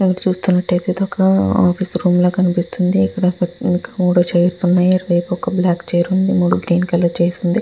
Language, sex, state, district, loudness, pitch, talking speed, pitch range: Telugu, female, Andhra Pradesh, Guntur, -16 LUFS, 180 Hz, 140 wpm, 175-185 Hz